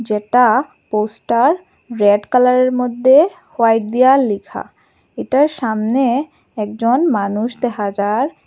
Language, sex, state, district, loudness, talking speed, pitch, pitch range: Bengali, female, Assam, Hailakandi, -15 LUFS, 100 wpm, 245 Hz, 215-265 Hz